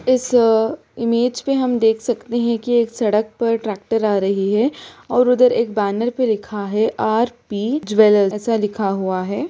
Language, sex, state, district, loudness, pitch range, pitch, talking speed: Hindi, female, Bihar, Gopalganj, -18 LUFS, 210-240 Hz, 225 Hz, 165 wpm